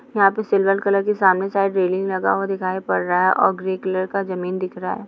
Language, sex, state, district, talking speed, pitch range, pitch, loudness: Hindi, female, Bihar, Sitamarhi, 260 wpm, 185-195 Hz, 190 Hz, -20 LUFS